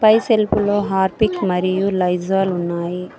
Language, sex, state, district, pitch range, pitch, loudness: Telugu, female, Telangana, Mahabubabad, 180-205 Hz, 190 Hz, -18 LUFS